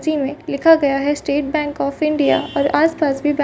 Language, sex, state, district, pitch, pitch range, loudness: Hindi, female, Chhattisgarh, Rajnandgaon, 295 Hz, 280-305 Hz, -17 LUFS